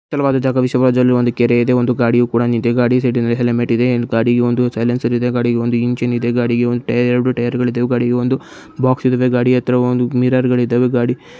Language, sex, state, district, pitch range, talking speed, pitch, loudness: Kannada, male, Karnataka, Chamarajanagar, 120-125 Hz, 200 wpm, 120 Hz, -15 LUFS